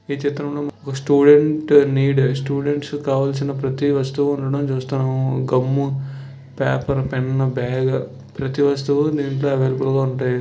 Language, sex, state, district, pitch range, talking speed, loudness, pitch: Telugu, male, Andhra Pradesh, Visakhapatnam, 130-145 Hz, 60 wpm, -19 LUFS, 135 Hz